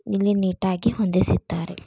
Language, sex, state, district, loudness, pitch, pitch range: Kannada, female, Karnataka, Dharwad, -22 LUFS, 190 Hz, 185-205 Hz